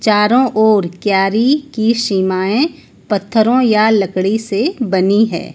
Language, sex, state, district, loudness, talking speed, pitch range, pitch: Hindi, female, Uttar Pradesh, Lucknow, -14 LUFS, 120 wpm, 195-235 Hz, 215 Hz